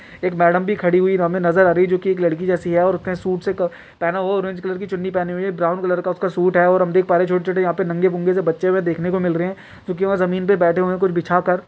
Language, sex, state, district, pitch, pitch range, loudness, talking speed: Hindi, male, Chhattisgarh, Kabirdham, 185 Hz, 175-185 Hz, -19 LUFS, 325 wpm